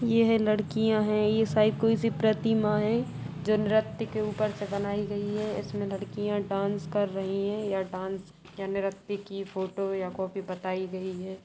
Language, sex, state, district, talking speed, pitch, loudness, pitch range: Hindi, female, Bihar, Sitamarhi, 185 wpm, 205 Hz, -29 LUFS, 190-215 Hz